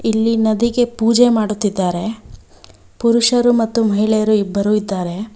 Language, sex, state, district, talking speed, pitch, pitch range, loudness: Kannada, female, Karnataka, Bangalore, 100 wpm, 215 Hz, 200-230 Hz, -16 LUFS